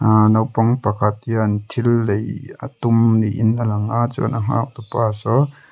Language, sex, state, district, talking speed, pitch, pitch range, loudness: Mizo, male, Mizoram, Aizawl, 170 wpm, 115 Hz, 110-120 Hz, -18 LUFS